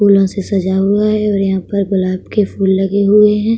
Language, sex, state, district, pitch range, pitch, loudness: Hindi, female, Uttar Pradesh, Budaun, 190-210 Hz, 200 Hz, -14 LUFS